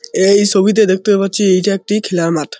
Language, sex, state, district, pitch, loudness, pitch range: Bengali, male, West Bengal, Jalpaiguri, 195 Hz, -13 LUFS, 185-205 Hz